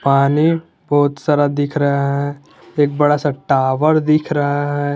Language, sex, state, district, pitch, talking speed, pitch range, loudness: Hindi, male, Jharkhand, Garhwa, 145 Hz, 155 wpm, 140-150 Hz, -16 LUFS